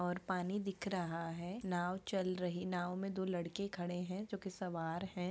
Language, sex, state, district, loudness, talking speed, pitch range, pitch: Hindi, female, Bihar, Jahanabad, -41 LUFS, 205 wpm, 175-195 Hz, 180 Hz